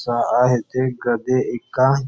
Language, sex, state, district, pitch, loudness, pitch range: Marathi, male, Maharashtra, Nagpur, 125 Hz, -20 LUFS, 120-130 Hz